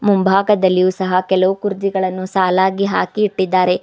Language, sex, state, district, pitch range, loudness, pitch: Kannada, female, Karnataka, Bidar, 185-195 Hz, -16 LUFS, 190 Hz